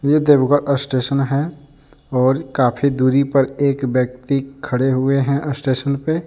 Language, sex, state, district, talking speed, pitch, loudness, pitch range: Hindi, male, Jharkhand, Deoghar, 155 wpm, 140 Hz, -18 LUFS, 130-145 Hz